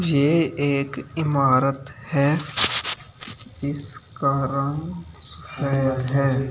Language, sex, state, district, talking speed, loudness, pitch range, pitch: Hindi, male, Delhi, New Delhi, 75 wpm, -22 LUFS, 135-145 Hz, 140 Hz